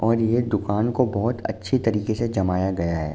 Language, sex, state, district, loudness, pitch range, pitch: Hindi, male, Uttar Pradesh, Jalaun, -23 LUFS, 95-115 Hz, 110 Hz